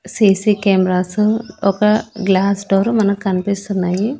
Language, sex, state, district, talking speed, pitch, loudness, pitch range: Telugu, female, Andhra Pradesh, Annamaya, 100 wpm, 200 Hz, -16 LUFS, 190-210 Hz